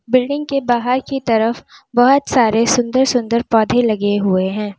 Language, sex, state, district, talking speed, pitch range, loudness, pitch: Hindi, female, Uttar Pradesh, Lalitpur, 160 wpm, 225-260 Hz, -16 LUFS, 240 Hz